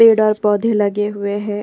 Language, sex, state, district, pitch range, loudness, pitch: Hindi, female, Uttar Pradesh, Jyotiba Phule Nagar, 205-215 Hz, -16 LUFS, 210 Hz